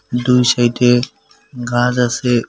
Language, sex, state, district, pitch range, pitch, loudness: Bengali, male, West Bengal, Cooch Behar, 120-125 Hz, 125 Hz, -15 LUFS